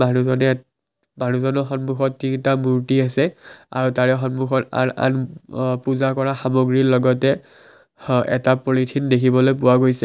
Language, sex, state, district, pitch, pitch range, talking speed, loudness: Assamese, male, Assam, Kamrup Metropolitan, 130 Hz, 130-135 Hz, 125 wpm, -19 LUFS